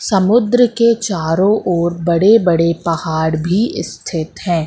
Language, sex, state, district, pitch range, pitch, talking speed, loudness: Hindi, female, Madhya Pradesh, Katni, 165-215 Hz, 175 Hz, 130 wpm, -15 LUFS